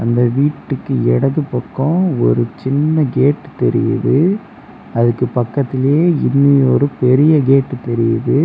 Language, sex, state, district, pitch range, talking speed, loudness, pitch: Tamil, male, Tamil Nadu, Kanyakumari, 125-145 Hz, 100 wpm, -15 LUFS, 135 Hz